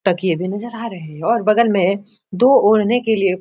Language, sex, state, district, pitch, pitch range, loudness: Hindi, male, Bihar, Supaul, 210 Hz, 185-230 Hz, -17 LUFS